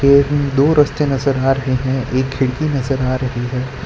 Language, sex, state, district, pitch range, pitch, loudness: Hindi, male, Gujarat, Valsad, 130-140 Hz, 135 Hz, -17 LUFS